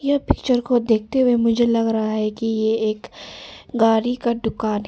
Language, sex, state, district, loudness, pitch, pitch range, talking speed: Hindi, female, Arunachal Pradesh, Longding, -20 LUFS, 225 Hz, 220-245 Hz, 185 wpm